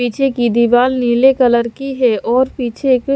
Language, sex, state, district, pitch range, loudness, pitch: Hindi, female, Himachal Pradesh, Shimla, 235-265 Hz, -14 LUFS, 250 Hz